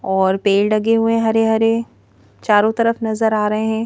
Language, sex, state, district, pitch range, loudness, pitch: Hindi, female, Madhya Pradesh, Bhopal, 210-225 Hz, -16 LUFS, 220 Hz